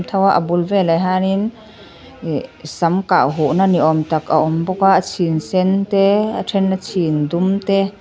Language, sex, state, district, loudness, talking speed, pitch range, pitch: Mizo, female, Mizoram, Aizawl, -16 LUFS, 185 wpm, 165-195 Hz, 185 Hz